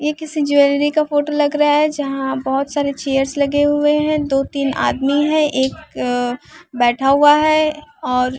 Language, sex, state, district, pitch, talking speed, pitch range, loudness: Hindi, female, Bihar, West Champaran, 290 Hz, 170 wpm, 270-300 Hz, -16 LUFS